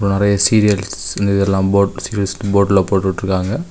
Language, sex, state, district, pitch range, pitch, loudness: Tamil, male, Tamil Nadu, Kanyakumari, 95-100 Hz, 100 Hz, -16 LUFS